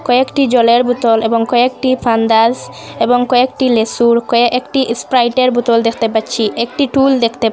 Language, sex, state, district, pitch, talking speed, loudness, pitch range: Bengali, female, Assam, Hailakandi, 240 Hz, 145 wpm, -13 LUFS, 230-255 Hz